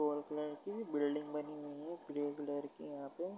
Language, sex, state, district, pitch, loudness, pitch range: Hindi, male, Uttar Pradesh, Varanasi, 150 Hz, -42 LUFS, 145-150 Hz